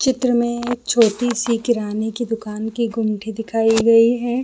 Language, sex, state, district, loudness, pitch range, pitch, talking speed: Hindi, female, Jharkhand, Jamtara, -19 LUFS, 225-240 Hz, 230 Hz, 175 wpm